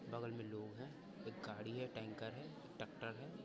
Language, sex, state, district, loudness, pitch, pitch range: Hindi, male, Uttar Pradesh, Varanasi, -50 LUFS, 115 Hz, 110-125 Hz